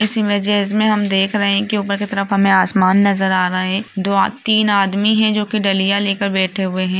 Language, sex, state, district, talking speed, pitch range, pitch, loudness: Hindi, female, Bihar, Lakhisarai, 240 wpm, 195-210 Hz, 200 Hz, -16 LUFS